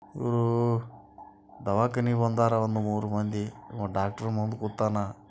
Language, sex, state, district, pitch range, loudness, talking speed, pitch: Kannada, male, Karnataka, Bijapur, 105-115 Hz, -28 LUFS, 100 wpm, 110 Hz